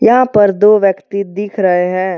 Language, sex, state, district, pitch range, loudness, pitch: Hindi, male, Jharkhand, Deoghar, 185-210 Hz, -12 LUFS, 200 Hz